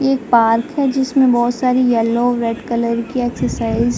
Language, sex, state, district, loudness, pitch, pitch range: Hindi, female, Uttar Pradesh, Jalaun, -16 LUFS, 240 Hz, 235-255 Hz